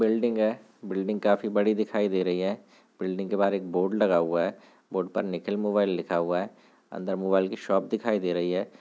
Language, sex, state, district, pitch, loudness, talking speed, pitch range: Hindi, male, Chhattisgarh, Rajnandgaon, 100 Hz, -27 LUFS, 210 wpm, 95-105 Hz